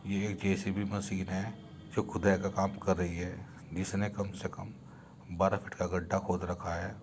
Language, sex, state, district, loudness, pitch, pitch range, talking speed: Hindi, male, Uttar Pradesh, Muzaffarnagar, -34 LUFS, 95 Hz, 95-100 Hz, 195 wpm